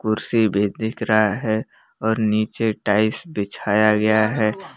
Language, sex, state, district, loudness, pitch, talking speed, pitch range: Hindi, male, Jharkhand, Palamu, -20 LUFS, 110 Hz, 140 wpm, 105-110 Hz